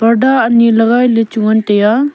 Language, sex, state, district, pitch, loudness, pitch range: Wancho, female, Arunachal Pradesh, Longding, 230 Hz, -10 LUFS, 220-245 Hz